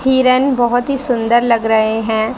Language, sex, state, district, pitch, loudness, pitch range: Hindi, female, Haryana, Charkhi Dadri, 240 Hz, -14 LUFS, 225-255 Hz